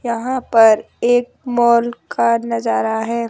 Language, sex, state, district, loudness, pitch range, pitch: Hindi, male, Rajasthan, Jaipur, -16 LUFS, 185-240 Hz, 235 Hz